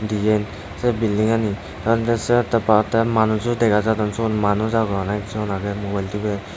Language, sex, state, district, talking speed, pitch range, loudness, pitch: Chakma, male, Tripura, Dhalai, 155 wpm, 105-115 Hz, -20 LUFS, 105 Hz